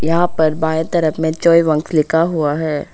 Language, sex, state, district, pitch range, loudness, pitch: Hindi, female, Arunachal Pradesh, Papum Pare, 155-165 Hz, -16 LUFS, 160 Hz